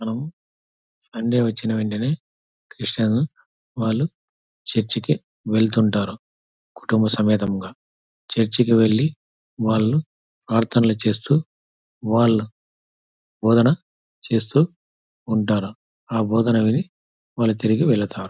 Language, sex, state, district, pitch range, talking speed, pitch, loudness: Telugu, male, Andhra Pradesh, Anantapur, 100-115 Hz, 90 wpm, 110 Hz, -21 LUFS